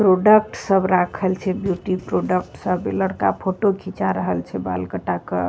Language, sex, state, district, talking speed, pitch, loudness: Maithili, female, Bihar, Begusarai, 175 wpm, 185 Hz, -21 LUFS